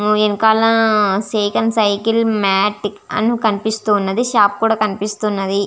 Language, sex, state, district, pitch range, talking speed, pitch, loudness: Telugu, female, Andhra Pradesh, Visakhapatnam, 205-225 Hz, 105 wpm, 210 Hz, -16 LUFS